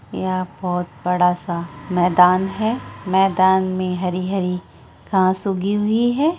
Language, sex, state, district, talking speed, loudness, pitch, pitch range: Hindi, female, Bihar, Araria, 110 wpm, -19 LUFS, 185 Hz, 180-195 Hz